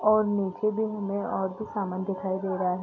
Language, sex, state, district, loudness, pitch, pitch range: Hindi, female, Bihar, East Champaran, -28 LUFS, 195 Hz, 190-215 Hz